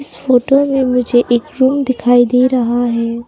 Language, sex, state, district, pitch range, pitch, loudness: Hindi, female, Arunachal Pradesh, Papum Pare, 240-260 Hz, 250 Hz, -13 LUFS